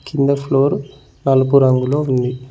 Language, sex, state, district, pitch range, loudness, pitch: Telugu, male, Telangana, Mahabubabad, 130-140 Hz, -16 LUFS, 135 Hz